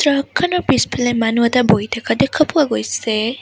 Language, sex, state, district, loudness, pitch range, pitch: Assamese, female, Assam, Sonitpur, -16 LUFS, 225-295 Hz, 240 Hz